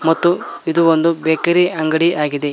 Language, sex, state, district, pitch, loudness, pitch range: Kannada, male, Karnataka, Koppal, 165 Hz, -16 LUFS, 160-170 Hz